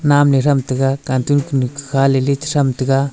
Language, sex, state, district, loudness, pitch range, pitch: Wancho, male, Arunachal Pradesh, Longding, -16 LUFS, 135-140 Hz, 135 Hz